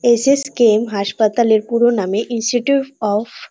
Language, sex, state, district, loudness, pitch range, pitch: Bengali, female, West Bengal, North 24 Parganas, -16 LUFS, 215-245 Hz, 235 Hz